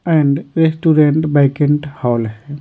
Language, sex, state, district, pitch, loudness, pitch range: Hindi, male, Bihar, Patna, 150 Hz, -15 LUFS, 140-155 Hz